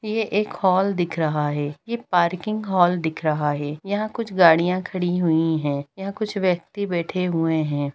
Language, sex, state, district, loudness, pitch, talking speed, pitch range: Hindi, female, Bihar, Gaya, -22 LUFS, 175 Hz, 180 wpm, 160-195 Hz